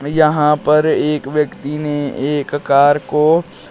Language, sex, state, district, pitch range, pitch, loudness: Hindi, male, Uttar Pradesh, Shamli, 145-150 Hz, 150 Hz, -15 LUFS